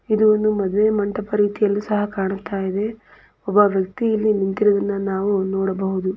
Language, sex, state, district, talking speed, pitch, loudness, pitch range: Kannada, female, Karnataka, Chamarajanagar, 145 wpm, 205 Hz, -20 LUFS, 195-210 Hz